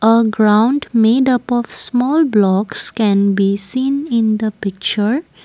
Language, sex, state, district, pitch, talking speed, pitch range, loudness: English, female, Assam, Kamrup Metropolitan, 225 Hz, 145 wpm, 210-250 Hz, -15 LUFS